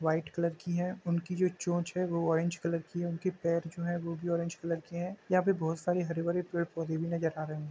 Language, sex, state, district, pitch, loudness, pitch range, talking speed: Hindi, male, Uttar Pradesh, Jalaun, 170 Hz, -33 LUFS, 165-175 Hz, 280 wpm